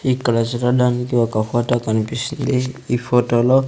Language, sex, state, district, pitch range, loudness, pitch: Telugu, male, Andhra Pradesh, Sri Satya Sai, 120-125 Hz, -19 LUFS, 120 Hz